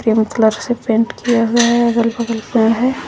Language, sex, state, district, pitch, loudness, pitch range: Hindi, female, Jharkhand, Garhwa, 230 Hz, -15 LUFS, 225-240 Hz